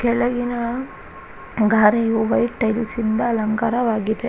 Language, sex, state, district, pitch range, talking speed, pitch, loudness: Kannada, female, Karnataka, Raichur, 220-240 Hz, 85 wpm, 230 Hz, -20 LUFS